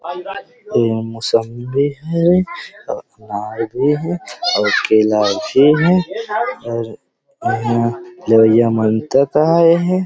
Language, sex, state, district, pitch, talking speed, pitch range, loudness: Chhattisgarhi, male, Chhattisgarh, Rajnandgaon, 140 Hz, 115 wpm, 115-175 Hz, -16 LUFS